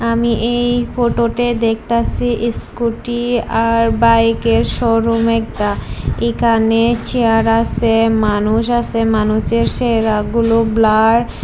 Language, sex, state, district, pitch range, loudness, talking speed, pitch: Bengali, female, Tripura, West Tripura, 225-235 Hz, -15 LUFS, 95 wpm, 230 Hz